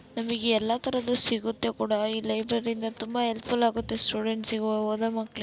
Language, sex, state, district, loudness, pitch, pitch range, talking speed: Kannada, female, Karnataka, Bellary, -27 LUFS, 225 Hz, 220-235 Hz, 165 wpm